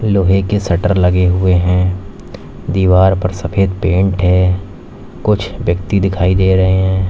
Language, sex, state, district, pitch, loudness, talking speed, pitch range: Hindi, male, Uttar Pradesh, Lalitpur, 95 Hz, -14 LUFS, 145 wpm, 90-95 Hz